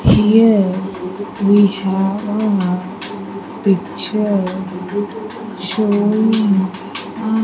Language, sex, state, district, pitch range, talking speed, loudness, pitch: English, female, Andhra Pradesh, Sri Satya Sai, 185-215 Hz, 55 wpm, -17 LUFS, 200 Hz